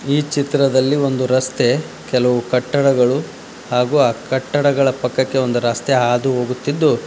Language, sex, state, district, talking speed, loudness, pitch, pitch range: Kannada, male, Karnataka, Dharwad, 120 wpm, -17 LUFS, 130 Hz, 125-140 Hz